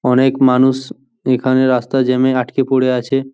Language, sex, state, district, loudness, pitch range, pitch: Bengali, male, West Bengal, Jhargram, -14 LUFS, 125-130 Hz, 130 Hz